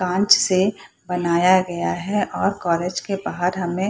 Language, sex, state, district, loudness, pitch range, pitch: Hindi, female, Bihar, Purnia, -20 LUFS, 175-195 Hz, 185 Hz